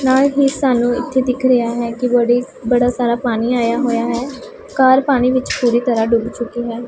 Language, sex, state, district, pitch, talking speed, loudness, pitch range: Punjabi, female, Punjab, Pathankot, 245 Hz, 200 wpm, -16 LUFS, 240-260 Hz